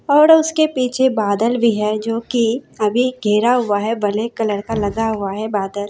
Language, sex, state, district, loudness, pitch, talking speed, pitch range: Hindi, female, Bihar, Katihar, -17 LUFS, 225 Hz, 195 wpm, 210-250 Hz